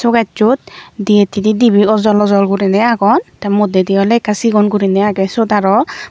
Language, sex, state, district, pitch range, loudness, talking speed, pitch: Chakma, female, Tripura, Unakoti, 200-225 Hz, -12 LUFS, 175 wpm, 210 Hz